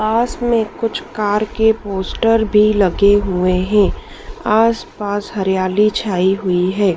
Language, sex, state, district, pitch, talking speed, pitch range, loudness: Hindi, female, Madhya Pradesh, Dhar, 205 Hz, 130 wpm, 190-220 Hz, -16 LUFS